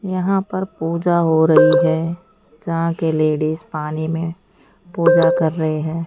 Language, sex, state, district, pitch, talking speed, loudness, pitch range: Hindi, female, Chandigarh, Chandigarh, 165 Hz, 150 wpm, -18 LUFS, 160-175 Hz